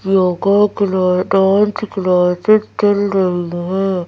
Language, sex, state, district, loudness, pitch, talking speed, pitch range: Hindi, female, Madhya Pradesh, Bhopal, -15 LUFS, 195 Hz, 105 wpm, 180-205 Hz